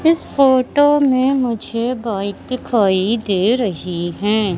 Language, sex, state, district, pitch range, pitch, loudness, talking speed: Hindi, female, Madhya Pradesh, Katni, 200-260 Hz, 230 Hz, -17 LUFS, 120 wpm